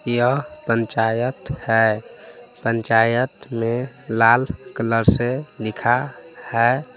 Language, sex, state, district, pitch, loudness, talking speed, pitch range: Hindi, male, Jharkhand, Palamu, 120 Hz, -20 LUFS, 85 wpm, 115-125 Hz